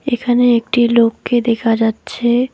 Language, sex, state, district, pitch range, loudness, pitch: Bengali, female, West Bengal, Alipurduar, 230-245 Hz, -15 LUFS, 240 Hz